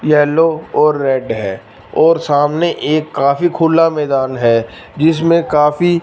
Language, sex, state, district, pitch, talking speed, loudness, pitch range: Hindi, male, Punjab, Fazilka, 150 Hz, 130 wpm, -14 LUFS, 135-165 Hz